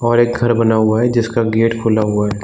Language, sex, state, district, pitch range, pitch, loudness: Hindi, male, Chhattisgarh, Bilaspur, 110-120 Hz, 115 Hz, -15 LUFS